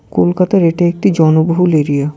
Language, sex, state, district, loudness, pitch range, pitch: Bengali, male, West Bengal, Kolkata, -12 LUFS, 155-180 Hz, 170 Hz